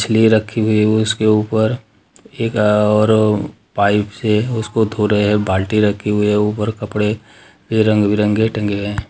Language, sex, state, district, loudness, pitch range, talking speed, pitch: Hindi, male, Bihar, Darbhanga, -16 LUFS, 105-110 Hz, 150 wpm, 105 Hz